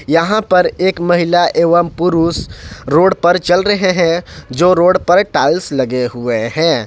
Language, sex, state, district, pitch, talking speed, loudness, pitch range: Hindi, male, Jharkhand, Ranchi, 170 Hz, 155 wpm, -13 LUFS, 145-180 Hz